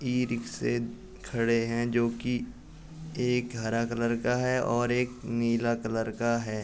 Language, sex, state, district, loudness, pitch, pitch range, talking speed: Hindi, male, Uttar Pradesh, Jalaun, -29 LUFS, 120 Hz, 115-125 Hz, 145 wpm